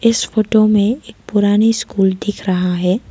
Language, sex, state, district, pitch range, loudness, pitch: Hindi, female, Arunachal Pradesh, Lower Dibang Valley, 195-220 Hz, -15 LUFS, 210 Hz